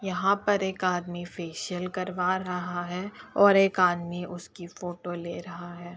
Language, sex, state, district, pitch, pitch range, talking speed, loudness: Hindi, female, Uttar Pradesh, Etah, 180 Hz, 175-190 Hz, 160 wpm, -28 LUFS